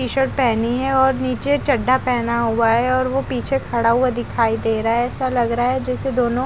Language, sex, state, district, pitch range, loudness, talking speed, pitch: Hindi, female, Haryana, Charkhi Dadri, 235-260 Hz, -18 LUFS, 230 wpm, 250 Hz